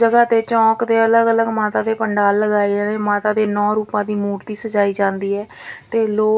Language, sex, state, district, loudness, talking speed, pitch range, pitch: Punjabi, female, Punjab, Fazilka, -17 LUFS, 205 wpm, 205-225 Hz, 215 Hz